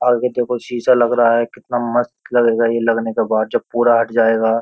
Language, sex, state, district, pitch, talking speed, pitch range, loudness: Hindi, male, Uttar Pradesh, Jyotiba Phule Nagar, 120 Hz, 220 wpm, 115-120 Hz, -16 LUFS